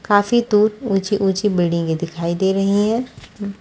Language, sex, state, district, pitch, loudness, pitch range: Hindi, female, Haryana, Charkhi Dadri, 200 Hz, -18 LUFS, 185-210 Hz